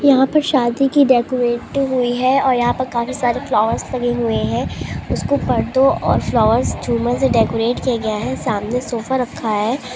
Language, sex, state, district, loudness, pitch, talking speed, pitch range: Hindi, female, Bihar, Vaishali, -17 LUFS, 250 Hz, 180 wpm, 235-260 Hz